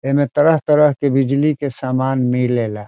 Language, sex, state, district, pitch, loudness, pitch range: Bhojpuri, male, Bihar, Saran, 135 Hz, -16 LUFS, 125-145 Hz